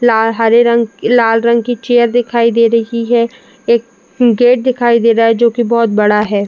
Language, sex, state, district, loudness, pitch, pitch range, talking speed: Hindi, female, Uttar Pradesh, Jalaun, -11 LUFS, 235 Hz, 230-240 Hz, 195 wpm